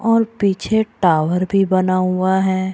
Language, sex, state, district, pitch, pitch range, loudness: Hindi, female, Bihar, Purnia, 190 Hz, 185-210 Hz, -17 LUFS